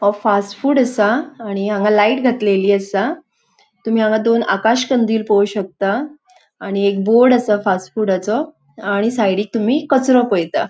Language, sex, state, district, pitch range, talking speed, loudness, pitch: Konkani, female, Goa, North and South Goa, 200-245 Hz, 150 wpm, -16 LUFS, 215 Hz